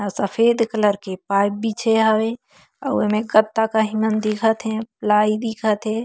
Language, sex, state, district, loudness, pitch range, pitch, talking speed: Chhattisgarhi, female, Chhattisgarh, Korba, -20 LUFS, 210-225 Hz, 220 Hz, 170 wpm